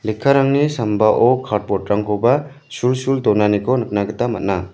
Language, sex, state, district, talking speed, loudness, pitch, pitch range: Garo, male, Meghalaya, West Garo Hills, 90 wpm, -17 LUFS, 120 Hz, 105-135 Hz